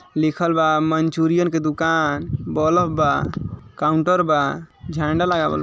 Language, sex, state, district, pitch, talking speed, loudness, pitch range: Bhojpuri, male, Uttar Pradesh, Ghazipur, 160 Hz, 115 wpm, -19 LUFS, 155-170 Hz